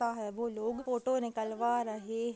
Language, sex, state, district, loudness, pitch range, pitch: Hindi, female, Uttar Pradesh, Jyotiba Phule Nagar, -34 LUFS, 220-240 Hz, 235 Hz